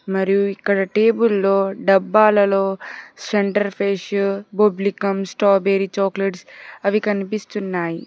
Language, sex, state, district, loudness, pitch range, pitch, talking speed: Telugu, female, Telangana, Hyderabad, -19 LUFS, 195-205 Hz, 200 Hz, 80 wpm